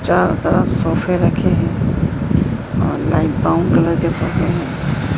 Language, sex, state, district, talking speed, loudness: Hindi, female, Madhya Pradesh, Dhar, 140 wpm, -17 LUFS